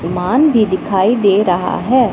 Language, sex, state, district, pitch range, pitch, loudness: Hindi, female, Punjab, Pathankot, 180-240 Hz, 200 Hz, -13 LUFS